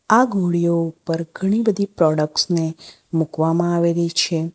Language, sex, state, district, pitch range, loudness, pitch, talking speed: Gujarati, female, Gujarat, Valsad, 165-180 Hz, -19 LUFS, 170 Hz, 130 wpm